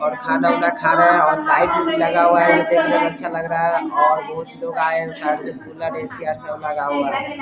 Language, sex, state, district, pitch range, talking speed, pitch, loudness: Hindi, male, Bihar, Vaishali, 150-175 Hz, 135 wpm, 165 Hz, -18 LUFS